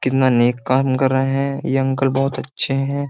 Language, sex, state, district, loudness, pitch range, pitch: Hindi, male, Uttar Pradesh, Jyotiba Phule Nagar, -18 LUFS, 130-135 Hz, 135 Hz